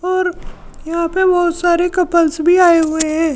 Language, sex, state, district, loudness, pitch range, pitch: Hindi, male, Uttar Pradesh, Jyotiba Phule Nagar, -14 LUFS, 325-360 Hz, 345 Hz